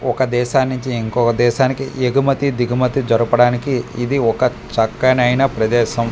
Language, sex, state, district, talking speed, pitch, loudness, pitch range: Telugu, male, Andhra Pradesh, Manyam, 110 wpm, 125 Hz, -16 LUFS, 120-130 Hz